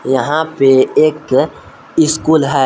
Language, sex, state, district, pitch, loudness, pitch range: Hindi, male, Jharkhand, Palamu, 145 Hz, -13 LUFS, 135-155 Hz